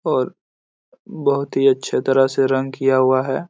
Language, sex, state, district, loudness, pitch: Hindi, male, Jharkhand, Jamtara, -18 LUFS, 135 Hz